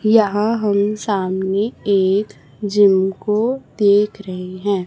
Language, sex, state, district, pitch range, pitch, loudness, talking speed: Hindi, female, Chhattisgarh, Raipur, 195-210 Hz, 205 Hz, -18 LUFS, 110 wpm